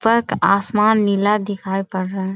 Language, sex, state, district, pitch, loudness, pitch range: Hindi, female, Bihar, Jamui, 200 Hz, -18 LUFS, 195-210 Hz